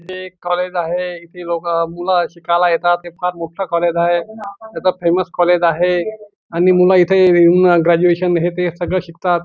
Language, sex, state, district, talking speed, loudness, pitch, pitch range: Marathi, male, Maharashtra, Nagpur, 170 wpm, -15 LUFS, 175 Hz, 170-180 Hz